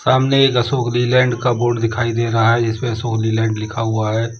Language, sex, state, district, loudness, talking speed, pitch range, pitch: Hindi, male, Uttar Pradesh, Lalitpur, -17 LUFS, 220 wpm, 115-125 Hz, 115 Hz